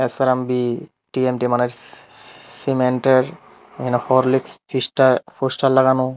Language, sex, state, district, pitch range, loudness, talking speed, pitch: Bengali, male, Tripura, Unakoti, 125-130 Hz, -19 LUFS, 95 wpm, 130 Hz